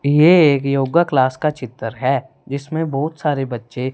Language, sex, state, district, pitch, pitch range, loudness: Hindi, female, Punjab, Fazilka, 140 Hz, 130-150 Hz, -17 LUFS